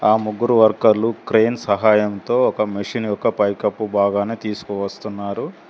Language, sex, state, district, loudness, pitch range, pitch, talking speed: Telugu, male, Telangana, Mahabubabad, -19 LUFS, 100-110 Hz, 105 Hz, 115 wpm